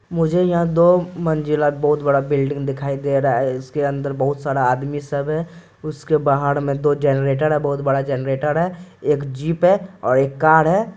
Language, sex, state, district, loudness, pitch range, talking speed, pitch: Hindi, male, Bihar, Purnia, -19 LUFS, 140-160 Hz, 185 wpm, 145 Hz